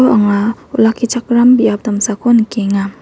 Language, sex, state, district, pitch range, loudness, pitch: Garo, female, Meghalaya, West Garo Hills, 205-240 Hz, -13 LUFS, 225 Hz